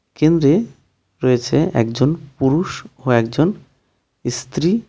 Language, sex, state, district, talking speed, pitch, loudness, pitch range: Bengali, male, West Bengal, Darjeeling, 100 wpm, 130 Hz, -18 LUFS, 120-155 Hz